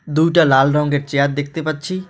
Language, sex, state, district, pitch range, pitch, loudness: Bengali, male, West Bengal, Alipurduar, 145-165 Hz, 150 Hz, -16 LUFS